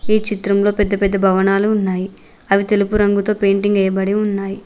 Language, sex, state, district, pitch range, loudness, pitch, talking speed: Telugu, female, Telangana, Mahabubabad, 195-205 Hz, -16 LUFS, 200 Hz, 155 wpm